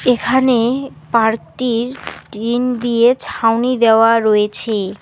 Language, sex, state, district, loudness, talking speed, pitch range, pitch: Bengali, female, West Bengal, Alipurduar, -15 LUFS, 85 wpm, 225-250 Hz, 230 Hz